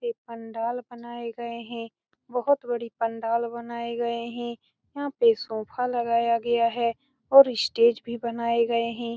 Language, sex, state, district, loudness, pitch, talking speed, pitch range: Hindi, female, Bihar, Saran, -26 LUFS, 235 Hz, 150 wpm, 230-240 Hz